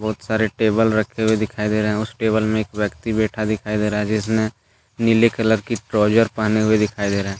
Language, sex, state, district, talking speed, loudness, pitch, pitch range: Hindi, male, Jharkhand, Deoghar, 245 wpm, -19 LUFS, 110 Hz, 105-110 Hz